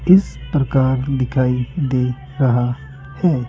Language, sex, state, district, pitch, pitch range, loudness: Hindi, male, Rajasthan, Jaipur, 130 Hz, 125-140 Hz, -18 LUFS